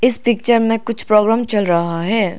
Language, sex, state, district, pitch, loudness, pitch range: Hindi, female, Arunachal Pradesh, Lower Dibang Valley, 225 Hz, -16 LUFS, 205-235 Hz